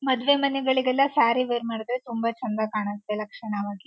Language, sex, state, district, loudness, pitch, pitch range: Kannada, female, Karnataka, Shimoga, -25 LUFS, 235 Hz, 215-260 Hz